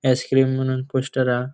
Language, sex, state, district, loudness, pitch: Konkani, male, Goa, North and South Goa, -21 LUFS, 130 Hz